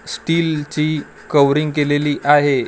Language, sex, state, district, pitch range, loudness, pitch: Marathi, male, Maharashtra, Gondia, 145-150 Hz, -17 LUFS, 150 Hz